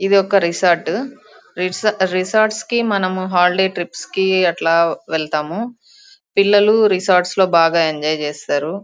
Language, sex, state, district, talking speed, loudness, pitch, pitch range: Telugu, female, Andhra Pradesh, Chittoor, 115 wpm, -16 LUFS, 185 Hz, 170-210 Hz